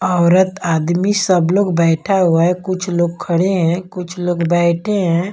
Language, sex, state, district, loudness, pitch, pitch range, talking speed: Hindi, female, Punjab, Kapurthala, -15 LUFS, 175 Hz, 170-185 Hz, 170 wpm